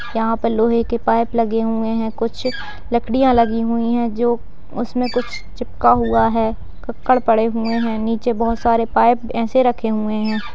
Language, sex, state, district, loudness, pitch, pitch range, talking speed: Hindi, female, Bihar, Jamui, -18 LUFS, 230 Hz, 225-235 Hz, 175 wpm